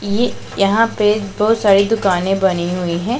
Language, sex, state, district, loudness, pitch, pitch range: Hindi, female, Punjab, Pathankot, -16 LUFS, 200 Hz, 190-220 Hz